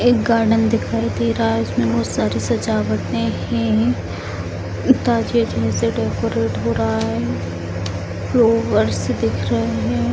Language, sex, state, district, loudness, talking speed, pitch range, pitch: Hindi, female, Bihar, Jamui, -19 LUFS, 125 wpm, 100-115 Hz, 110 Hz